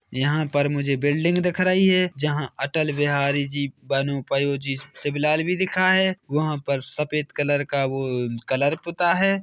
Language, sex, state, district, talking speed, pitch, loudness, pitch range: Hindi, male, Chhattisgarh, Bilaspur, 160 wpm, 145 Hz, -22 LUFS, 140-170 Hz